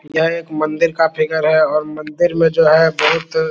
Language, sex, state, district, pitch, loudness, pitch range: Hindi, male, Bihar, Lakhisarai, 160 Hz, -15 LUFS, 155-170 Hz